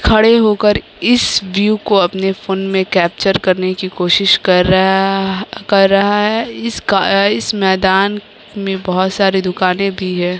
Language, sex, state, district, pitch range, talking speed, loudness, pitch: Hindi, female, Bihar, Kishanganj, 190-205 Hz, 155 wpm, -13 LUFS, 195 Hz